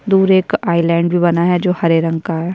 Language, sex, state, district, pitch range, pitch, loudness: Hindi, female, Chhattisgarh, Sukma, 170-185 Hz, 175 Hz, -14 LUFS